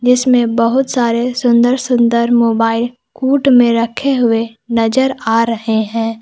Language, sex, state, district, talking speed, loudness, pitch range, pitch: Hindi, female, Jharkhand, Palamu, 135 wpm, -13 LUFS, 230-250 Hz, 235 Hz